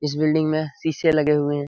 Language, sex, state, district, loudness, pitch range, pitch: Hindi, male, Bihar, Jahanabad, -21 LUFS, 150-155 Hz, 155 Hz